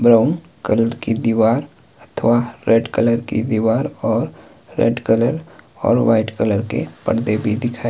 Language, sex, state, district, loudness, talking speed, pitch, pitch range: Hindi, male, Himachal Pradesh, Shimla, -18 LUFS, 150 wpm, 115 Hz, 110-120 Hz